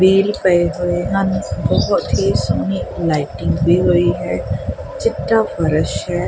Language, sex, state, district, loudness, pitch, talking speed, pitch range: Punjabi, female, Punjab, Kapurthala, -17 LUFS, 190 Hz, 125 wpm, 175-195 Hz